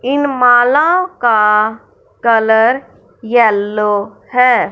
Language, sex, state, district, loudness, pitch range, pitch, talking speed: Hindi, male, Punjab, Fazilka, -12 LUFS, 220-255 Hz, 235 Hz, 75 wpm